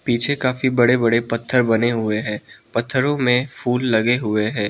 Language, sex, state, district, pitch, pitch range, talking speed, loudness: Hindi, male, Manipur, Imphal West, 120 Hz, 115-125 Hz, 180 wpm, -19 LUFS